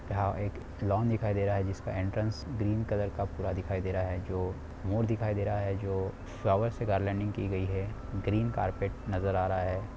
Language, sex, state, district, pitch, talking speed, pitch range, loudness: Hindi, male, Bihar, Samastipur, 100 Hz, 215 wpm, 95-105 Hz, -32 LUFS